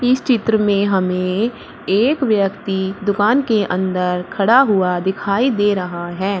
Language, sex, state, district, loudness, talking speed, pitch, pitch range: Hindi, female, Uttar Pradesh, Shamli, -17 LUFS, 140 wpm, 200 Hz, 185-225 Hz